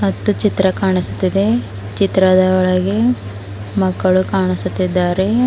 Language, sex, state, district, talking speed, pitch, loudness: Kannada, female, Karnataka, Bidar, 75 wpm, 185 Hz, -16 LUFS